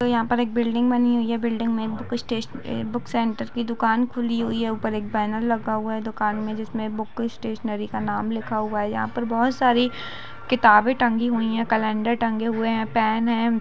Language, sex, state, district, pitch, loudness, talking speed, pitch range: Hindi, female, Jharkhand, Sahebganj, 230 Hz, -23 LUFS, 210 wpm, 220-235 Hz